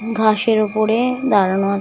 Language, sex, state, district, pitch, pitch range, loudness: Bengali, female, West Bengal, Malda, 215 Hz, 205-225 Hz, -17 LUFS